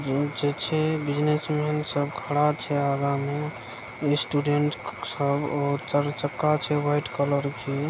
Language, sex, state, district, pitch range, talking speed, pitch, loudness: Maithili, male, Bihar, Begusarai, 140-150 Hz, 120 wpm, 145 Hz, -26 LUFS